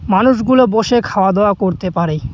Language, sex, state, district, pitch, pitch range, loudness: Bengali, male, West Bengal, Cooch Behar, 200 Hz, 185-240 Hz, -14 LUFS